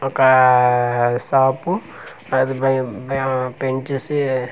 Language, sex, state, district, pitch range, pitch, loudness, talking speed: Telugu, male, Andhra Pradesh, Manyam, 130-135 Hz, 130 Hz, -18 LUFS, 105 wpm